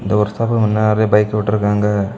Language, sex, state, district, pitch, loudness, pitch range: Tamil, male, Tamil Nadu, Kanyakumari, 105 Hz, -16 LUFS, 105-110 Hz